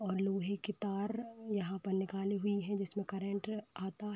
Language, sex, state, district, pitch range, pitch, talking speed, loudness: Hindi, female, Uttar Pradesh, Varanasi, 195-210 Hz, 200 Hz, 185 wpm, -38 LUFS